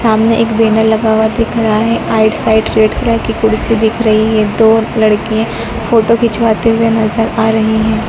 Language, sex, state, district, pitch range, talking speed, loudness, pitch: Hindi, female, Madhya Pradesh, Dhar, 220-225 Hz, 185 wpm, -11 LUFS, 220 Hz